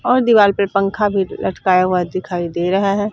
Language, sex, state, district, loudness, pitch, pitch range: Hindi, female, Chandigarh, Chandigarh, -16 LUFS, 195 Hz, 185-205 Hz